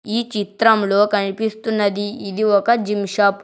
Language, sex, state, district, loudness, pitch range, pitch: Telugu, male, Telangana, Hyderabad, -18 LUFS, 200-220 Hz, 205 Hz